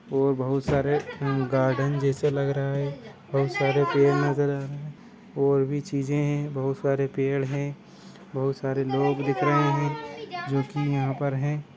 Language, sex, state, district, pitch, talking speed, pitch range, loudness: Hindi, male, Uttar Pradesh, Budaun, 140 Hz, 175 wpm, 135-145 Hz, -26 LUFS